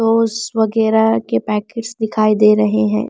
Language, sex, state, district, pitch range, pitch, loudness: Hindi, female, Bihar, Kaimur, 205-225 Hz, 220 Hz, -15 LUFS